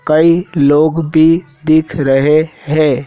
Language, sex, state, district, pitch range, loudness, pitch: Hindi, male, Madhya Pradesh, Dhar, 150-160 Hz, -12 LUFS, 155 Hz